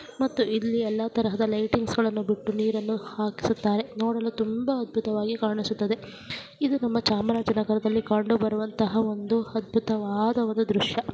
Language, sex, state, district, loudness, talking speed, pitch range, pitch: Kannada, female, Karnataka, Chamarajanagar, -26 LUFS, 120 wpm, 215-230 Hz, 220 Hz